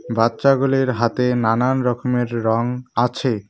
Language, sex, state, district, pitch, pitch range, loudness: Bengali, male, West Bengal, Cooch Behar, 125 Hz, 115-130 Hz, -19 LUFS